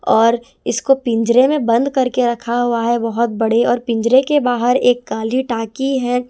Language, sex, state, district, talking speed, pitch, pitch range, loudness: Hindi, female, Punjab, Kapurthala, 180 wpm, 240 Hz, 230-255 Hz, -16 LUFS